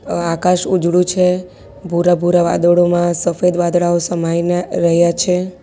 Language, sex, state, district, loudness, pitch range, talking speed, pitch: Gujarati, female, Gujarat, Valsad, -15 LUFS, 170-180 Hz, 130 wpm, 175 Hz